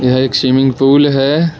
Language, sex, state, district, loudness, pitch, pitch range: Hindi, male, Arunachal Pradesh, Lower Dibang Valley, -11 LUFS, 135 Hz, 130-145 Hz